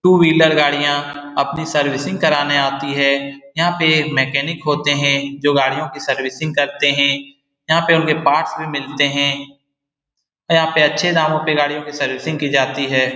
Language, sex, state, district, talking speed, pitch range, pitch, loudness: Hindi, male, Bihar, Saran, 170 wpm, 140-155 Hz, 145 Hz, -16 LUFS